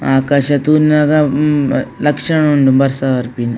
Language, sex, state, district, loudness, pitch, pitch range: Tulu, female, Karnataka, Dakshina Kannada, -13 LUFS, 145 Hz, 135-150 Hz